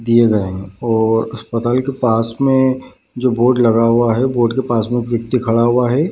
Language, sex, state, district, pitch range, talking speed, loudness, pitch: Hindi, male, Bihar, Madhepura, 115-125 Hz, 215 wpm, -15 LUFS, 120 Hz